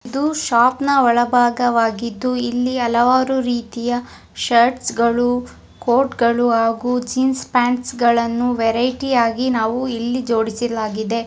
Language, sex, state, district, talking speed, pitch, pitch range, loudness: Kannada, female, Karnataka, Dharwad, 105 wpm, 245 Hz, 235-250 Hz, -18 LUFS